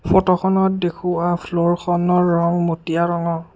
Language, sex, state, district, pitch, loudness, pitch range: Assamese, male, Assam, Kamrup Metropolitan, 175 Hz, -18 LUFS, 170-180 Hz